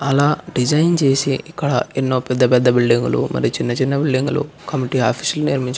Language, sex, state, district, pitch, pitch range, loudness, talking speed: Telugu, male, Andhra Pradesh, Anantapur, 135 Hz, 125-145 Hz, -18 LUFS, 135 wpm